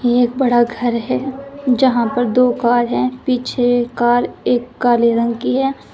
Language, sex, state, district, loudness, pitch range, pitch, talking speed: Hindi, female, Uttar Pradesh, Shamli, -16 LUFS, 240-255 Hz, 245 Hz, 180 wpm